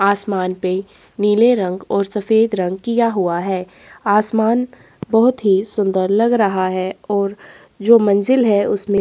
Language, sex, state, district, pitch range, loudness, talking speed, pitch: Hindi, female, Chhattisgarh, Korba, 190-225 Hz, -17 LUFS, 145 wpm, 200 Hz